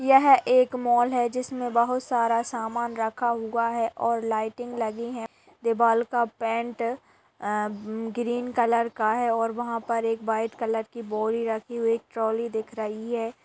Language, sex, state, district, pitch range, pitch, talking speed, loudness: Hindi, female, Uttar Pradesh, Budaun, 225-240 Hz, 230 Hz, 165 wpm, -26 LUFS